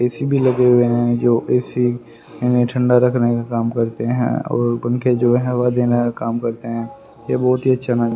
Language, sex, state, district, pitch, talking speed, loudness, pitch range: Hindi, male, Haryana, Rohtak, 120 Hz, 205 wpm, -18 LUFS, 120-125 Hz